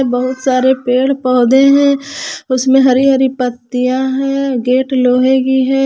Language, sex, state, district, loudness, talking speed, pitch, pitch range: Hindi, female, Jharkhand, Palamu, -12 LUFS, 145 wpm, 260 Hz, 255-270 Hz